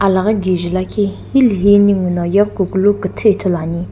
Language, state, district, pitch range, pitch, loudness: Sumi, Nagaland, Dimapur, 185-205 Hz, 195 Hz, -14 LUFS